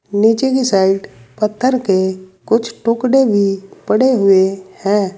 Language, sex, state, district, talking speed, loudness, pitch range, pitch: Hindi, male, Uttar Pradesh, Saharanpur, 125 wpm, -15 LUFS, 190-230 Hz, 205 Hz